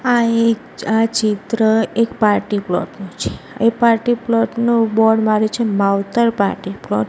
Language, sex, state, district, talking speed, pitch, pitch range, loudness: Gujarati, female, Gujarat, Gandhinagar, 170 wpm, 225 Hz, 205-230 Hz, -17 LUFS